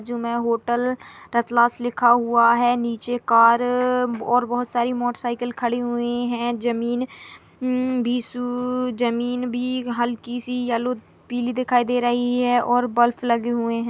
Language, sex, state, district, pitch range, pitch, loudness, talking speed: Hindi, female, Chhattisgarh, Rajnandgaon, 240-245 Hz, 245 Hz, -22 LUFS, 150 wpm